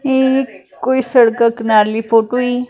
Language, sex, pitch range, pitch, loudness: Punjabi, female, 225-260 Hz, 245 Hz, -14 LUFS